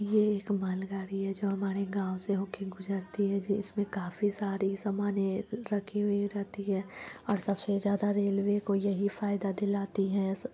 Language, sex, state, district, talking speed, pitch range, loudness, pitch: Hindi, female, Bihar, Lakhisarai, 170 wpm, 195-205 Hz, -32 LUFS, 200 Hz